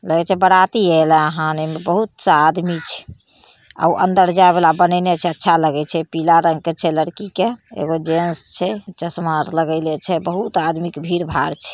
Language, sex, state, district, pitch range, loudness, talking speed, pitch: Maithili, female, Bihar, Samastipur, 160-180 Hz, -17 LUFS, 195 wpm, 170 Hz